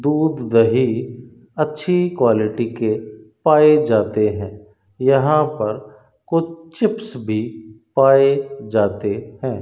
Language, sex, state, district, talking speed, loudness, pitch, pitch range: Hindi, male, Rajasthan, Bikaner, 100 wpm, -18 LUFS, 120 Hz, 110-150 Hz